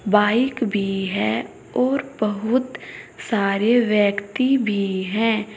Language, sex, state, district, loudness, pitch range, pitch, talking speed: Hindi, female, Uttar Pradesh, Saharanpur, -21 LUFS, 200-240 Hz, 215 Hz, 95 wpm